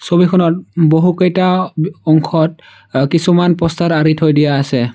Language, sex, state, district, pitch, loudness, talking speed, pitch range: Assamese, male, Assam, Sonitpur, 165 Hz, -13 LUFS, 110 wpm, 155-175 Hz